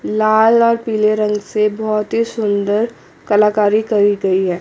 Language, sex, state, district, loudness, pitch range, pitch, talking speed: Hindi, female, Chandigarh, Chandigarh, -15 LUFS, 205-220 Hz, 215 Hz, 155 wpm